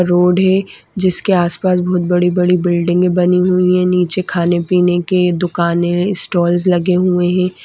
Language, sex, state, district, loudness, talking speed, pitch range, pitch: Hindi, female, West Bengal, Kolkata, -14 LUFS, 150 wpm, 175-185 Hz, 180 Hz